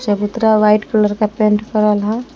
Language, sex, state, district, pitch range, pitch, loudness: Hindi, female, Jharkhand, Palamu, 210-220 Hz, 215 Hz, -15 LUFS